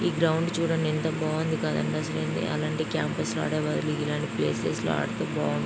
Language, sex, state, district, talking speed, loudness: Telugu, female, Andhra Pradesh, Chittoor, 190 wpm, -28 LUFS